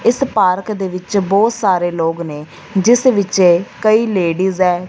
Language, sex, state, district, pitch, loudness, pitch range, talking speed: Punjabi, female, Punjab, Fazilka, 190 Hz, -15 LUFS, 175-215 Hz, 160 wpm